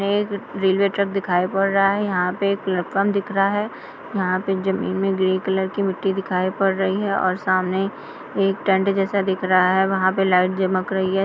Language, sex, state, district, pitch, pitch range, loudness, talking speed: Hindi, female, Bihar, Sitamarhi, 195 Hz, 185-195 Hz, -21 LUFS, 215 wpm